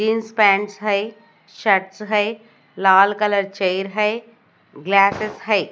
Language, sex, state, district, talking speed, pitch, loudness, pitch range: Hindi, female, Odisha, Nuapada, 115 wpm, 205 Hz, -18 LUFS, 195-215 Hz